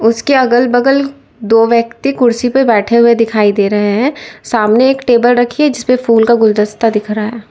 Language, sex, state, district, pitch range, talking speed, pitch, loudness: Hindi, female, Uttar Pradesh, Lalitpur, 220-250 Hz, 210 wpm, 235 Hz, -11 LUFS